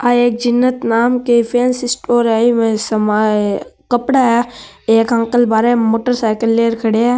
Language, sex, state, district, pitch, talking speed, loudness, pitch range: Marwari, male, Rajasthan, Nagaur, 235 Hz, 175 wpm, -14 LUFS, 225-245 Hz